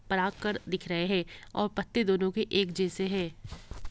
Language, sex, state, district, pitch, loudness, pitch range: Hindi, female, Bihar, Gopalganj, 190 Hz, -31 LUFS, 175-195 Hz